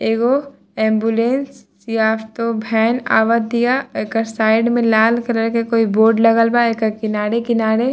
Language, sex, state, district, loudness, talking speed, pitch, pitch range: Bhojpuri, female, Bihar, Saran, -16 LUFS, 160 wpm, 225 Hz, 220-235 Hz